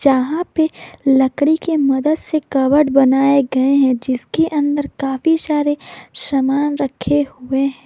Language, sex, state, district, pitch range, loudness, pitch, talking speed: Hindi, female, Jharkhand, Garhwa, 270-295 Hz, -16 LUFS, 280 Hz, 135 wpm